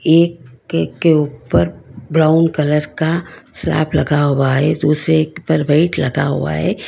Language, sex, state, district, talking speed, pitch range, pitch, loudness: Hindi, female, Karnataka, Bangalore, 130 wpm, 145-160 Hz, 155 Hz, -16 LUFS